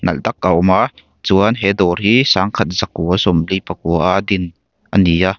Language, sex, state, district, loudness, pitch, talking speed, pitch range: Mizo, male, Mizoram, Aizawl, -15 LUFS, 95 Hz, 190 wpm, 90-100 Hz